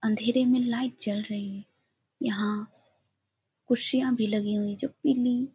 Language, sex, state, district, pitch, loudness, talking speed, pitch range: Hindi, female, Bihar, Jahanabad, 235 Hz, -28 LUFS, 160 wpm, 210-255 Hz